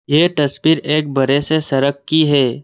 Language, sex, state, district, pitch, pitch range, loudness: Hindi, male, Assam, Kamrup Metropolitan, 145 Hz, 140-155 Hz, -15 LUFS